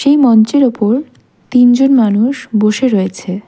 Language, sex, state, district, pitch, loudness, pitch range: Bengali, female, West Bengal, Darjeeling, 245 Hz, -11 LUFS, 210-260 Hz